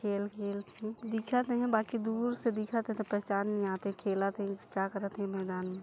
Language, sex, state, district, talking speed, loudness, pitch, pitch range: Hindi, female, Chhattisgarh, Jashpur, 235 wpm, -34 LUFS, 205 Hz, 200-225 Hz